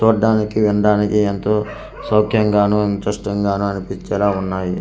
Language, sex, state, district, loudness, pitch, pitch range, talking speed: Telugu, male, Andhra Pradesh, Manyam, -17 LUFS, 105 Hz, 100-105 Hz, 100 wpm